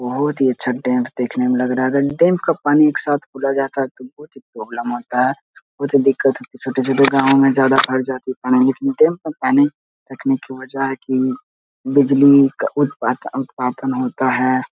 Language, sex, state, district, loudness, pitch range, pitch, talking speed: Hindi, male, Bihar, Jahanabad, -17 LUFS, 130-140 Hz, 135 Hz, 205 wpm